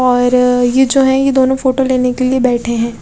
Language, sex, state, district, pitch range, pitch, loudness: Hindi, female, Chhattisgarh, Raipur, 250-265 Hz, 255 Hz, -12 LUFS